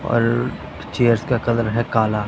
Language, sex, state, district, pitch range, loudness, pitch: Hindi, male, Punjab, Pathankot, 110-120 Hz, -19 LUFS, 115 Hz